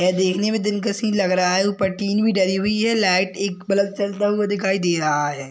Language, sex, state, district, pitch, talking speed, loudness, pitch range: Hindi, male, Bihar, Madhepura, 195 Hz, 250 wpm, -20 LUFS, 185-205 Hz